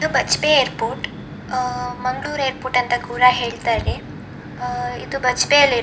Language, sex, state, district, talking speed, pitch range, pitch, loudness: Kannada, female, Karnataka, Dakshina Kannada, 135 wpm, 245-265 Hz, 250 Hz, -19 LUFS